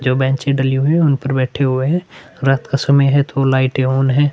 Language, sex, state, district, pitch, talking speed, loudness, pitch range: Hindi, male, Chhattisgarh, Korba, 135 Hz, 250 wpm, -16 LUFS, 130-140 Hz